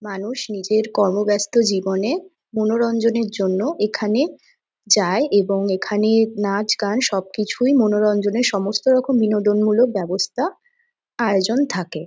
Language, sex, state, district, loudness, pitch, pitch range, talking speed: Bengali, female, West Bengal, Jhargram, -19 LUFS, 210 Hz, 200-235 Hz, 95 wpm